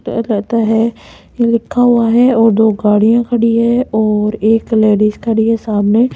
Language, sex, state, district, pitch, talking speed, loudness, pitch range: Hindi, female, Rajasthan, Jaipur, 225 Hz, 165 wpm, -12 LUFS, 215-235 Hz